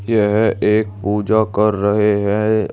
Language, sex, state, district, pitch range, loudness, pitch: Hindi, male, Uttar Pradesh, Saharanpur, 100-110 Hz, -16 LUFS, 105 Hz